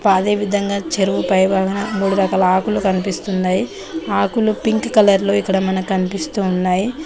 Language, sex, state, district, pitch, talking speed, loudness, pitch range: Telugu, female, Telangana, Mahabubabad, 195 Hz, 125 wpm, -17 LUFS, 190-205 Hz